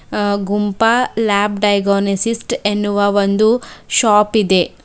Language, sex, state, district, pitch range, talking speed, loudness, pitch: Kannada, female, Karnataka, Bidar, 200-220 Hz, 100 wpm, -15 LUFS, 205 Hz